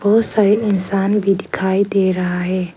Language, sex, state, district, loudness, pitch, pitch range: Hindi, female, Arunachal Pradesh, Lower Dibang Valley, -16 LUFS, 195 Hz, 185-205 Hz